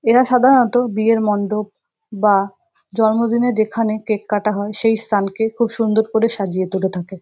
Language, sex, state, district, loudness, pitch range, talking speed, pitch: Bengali, female, West Bengal, North 24 Parganas, -17 LUFS, 205-230 Hz, 150 wpm, 220 Hz